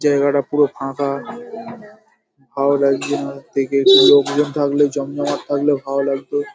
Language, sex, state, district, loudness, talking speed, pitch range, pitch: Bengali, male, West Bengal, Paschim Medinipur, -17 LUFS, 120 wpm, 140-150 Hz, 145 Hz